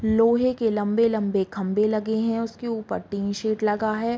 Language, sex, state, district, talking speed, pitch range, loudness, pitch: Hindi, female, Chhattisgarh, Bilaspur, 170 wpm, 210-230 Hz, -24 LUFS, 220 Hz